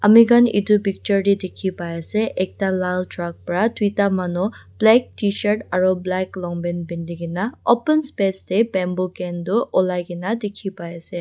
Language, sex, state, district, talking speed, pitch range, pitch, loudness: Nagamese, female, Nagaland, Dimapur, 165 wpm, 180-210 Hz, 190 Hz, -20 LUFS